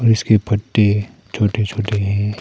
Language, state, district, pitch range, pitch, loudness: Hindi, Arunachal Pradesh, Papum Pare, 105-110 Hz, 105 Hz, -18 LUFS